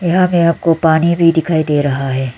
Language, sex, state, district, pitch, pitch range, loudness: Hindi, female, Arunachal Pradesh, Lower Dibang Valley, 160 Hz, 145-170 Hz, -13 LUFS